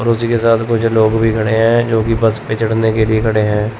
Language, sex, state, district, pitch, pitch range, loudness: Hindi, male, Chandigarh, Chandigarh, 110 Hz, 110-115 Hz, -14 LUFS